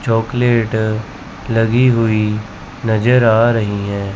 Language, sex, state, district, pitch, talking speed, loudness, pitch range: Hindi, male, Chandigarh, Chandigarh, 110 Hz, 100 wpm, -15 LUFS, 105-115 Hz